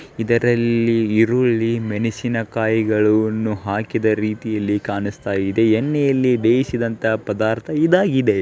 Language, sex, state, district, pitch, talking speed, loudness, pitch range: Kannada, male, Karnataka, Belgaum, 110 Hz, 80 wpm, -19 LUFS, 105-120 Hz